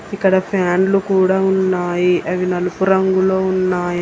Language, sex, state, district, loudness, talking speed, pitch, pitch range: Telugu, female, Telangana, Hyderabad, -16 LUFS, 120 wpm, 185 Hz, 180-190 Hz